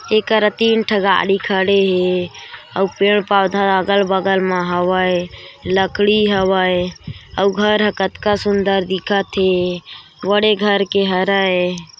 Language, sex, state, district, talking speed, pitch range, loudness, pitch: Chhattisgarhi, female, Chhattisgarh, Korba, 120 wpm, 185-205 Hz, -16 LUFS, 195 Hz